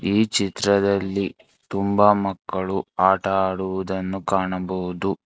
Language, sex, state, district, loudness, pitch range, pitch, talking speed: Kannada, male, Karnataka, Bangalore, -22 LUFS, 95-100 Hz, 95 Hz, 80 wpm